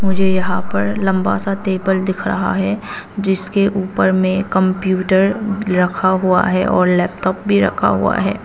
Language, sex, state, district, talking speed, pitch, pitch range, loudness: Hindi, female, Arunachal Pradesh, Papum Pare, 155 wpm, 190 Hz, 185-195 Hz, -16 LUFS